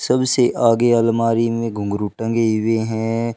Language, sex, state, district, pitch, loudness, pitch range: Hindi, male, Uttar Pradesh, Shamli, 115 Hz, -18 LUFS, 110-115 Hz